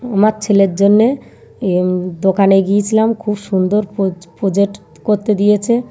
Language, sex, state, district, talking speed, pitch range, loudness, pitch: Bengali, female, West Bengal, North 24 Parganas, 120 wpm, 195-215 Hz, -15 LUFS, 200 Hz